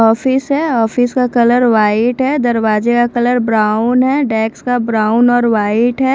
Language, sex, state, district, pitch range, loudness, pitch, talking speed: Hindi, female, Odisha, Khordha, 225-250 Hz, -13 LUFS, 240 Hz, 165 wpm